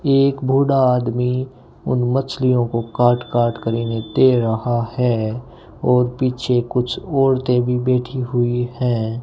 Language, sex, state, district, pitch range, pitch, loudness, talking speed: Hindi, male, Rajasthan, Bikaner, 120-130 Hz, 125 Hz, -18 LUFS, 145 wpm